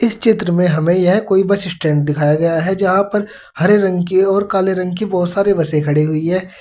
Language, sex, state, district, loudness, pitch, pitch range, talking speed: Hindi, male, Uttar Pradesh, Saharanpur, -15 LUFS, 185 Hz, 165-200 Hz, 235 wpm